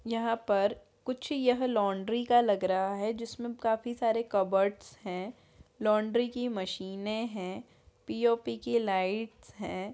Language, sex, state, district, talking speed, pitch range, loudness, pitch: Hindi, female, Bihar, Madhepura, 145 wpm, 195-235 Hz, -31 LUFS, 220 Hz